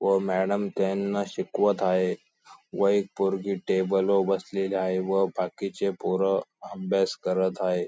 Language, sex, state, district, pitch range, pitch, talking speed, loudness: Marathi, male, Maharashtra, Sindhudurg, 95-100 Hz, 95 Hz, 135 wpm, -26 LUFS